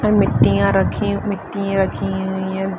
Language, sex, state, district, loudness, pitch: Hindi, female, Bihar, Madhepura, -18 LUFS, 190 Hz